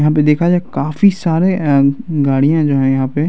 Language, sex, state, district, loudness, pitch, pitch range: Hindi, male, Bihar, Araria, -14 LUFS, 150 Hz, 140-170 Hz